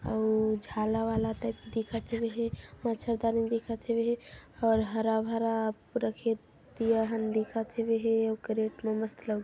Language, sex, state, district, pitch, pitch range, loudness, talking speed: Hindi, female, Chhattisgarh, Kabirdham, 225 Hz, 220-230 Hz, -31 LUFS, 150 wpm